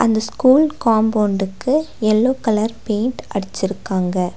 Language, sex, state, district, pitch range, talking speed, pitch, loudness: Tamil, female, Tamil Nadu, Nilgiris, 195-250 Hz, 95 wpm, 220 Hz, -18 LUFS